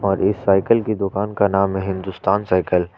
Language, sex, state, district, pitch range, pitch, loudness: Hindi, male, Jharkhand, Ranchi, 95-100 Hz, 95 Hz, -19 LUFS